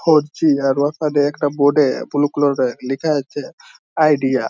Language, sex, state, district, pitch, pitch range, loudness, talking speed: Bengali, male, West Bengal, Jhargram, 145 Hz, 140-155 Hz, -17 LUFS, 185 wpm